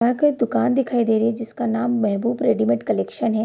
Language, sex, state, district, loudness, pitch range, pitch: Hindi, female, Bihar, East Champaran, -20 LUFS, 220-240 Hz, 230 Hz